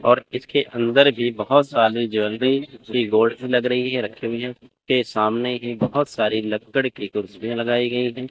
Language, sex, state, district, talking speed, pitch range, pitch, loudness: Hindi, male, Chandigarh, Chandigarh, 180 wpm, 115-125 Hz, 120 Hz, -21 LUFS